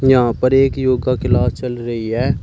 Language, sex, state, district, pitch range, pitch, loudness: Hindi, male, Uttar Pradesh, Shamli, 120-130 Hz, 125 Hz, -17 LUFS